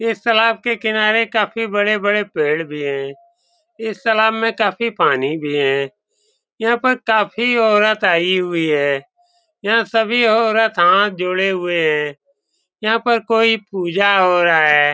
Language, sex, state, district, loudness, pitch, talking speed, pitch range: Hindi, male, Bihar, Saran, -16 LUFS, 215 Hz, 150 wpm, 175-230 Hz